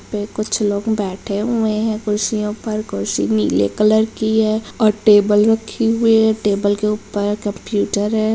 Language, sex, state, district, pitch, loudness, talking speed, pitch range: Hindi, female, Bihar, Jamui, 215 Hz, -17 LUFS, 165 wpm, 205-220 Hz